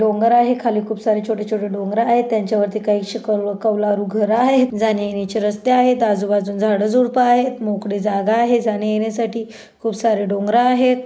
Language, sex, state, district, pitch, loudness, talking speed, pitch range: Marathi, female, Maharashtra, Dhule, 220 Hz, -18 LUFS, 165 wpm, 210-235 Hz